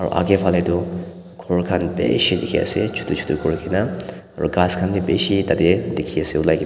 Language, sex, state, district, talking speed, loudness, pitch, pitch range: Nagamese, male, Nagaland, Dimapur, 180 wpm, -19 LUFS, 90 Hz, 85-90 Hz